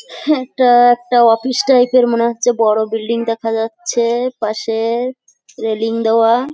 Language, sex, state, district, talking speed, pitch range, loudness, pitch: Bengali, female, West Bengal, Jhargram, 145 wpm, 225-250 Hz, -15 LUFS, 235 Hz